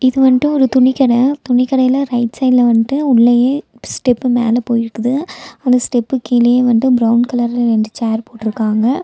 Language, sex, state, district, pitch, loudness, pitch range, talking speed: Tamil, female, Tamil Nadu, Nilgiris, 245 Hz, -14 LUFS, 235-260 Hz, 140 wpm